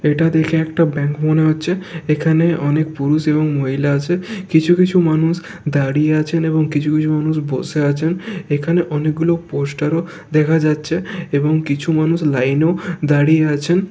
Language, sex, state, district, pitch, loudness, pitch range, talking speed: Bengali, male, West Bengal, Kolkata, 155 Hz, -17 LUFS, 150-165 Hz, 150 wpm